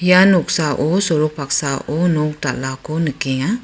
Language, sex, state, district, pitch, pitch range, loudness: Garo, female, Meghalaya, West Garo Hills, 155 Hz, 140-175 Hz, -17 LUFS